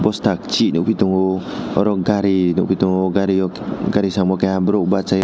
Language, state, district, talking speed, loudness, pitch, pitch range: Kokborok, Tripura, West Tripura, 215 wpm, -18 LUFS, 95 Hz, 95-100 Hz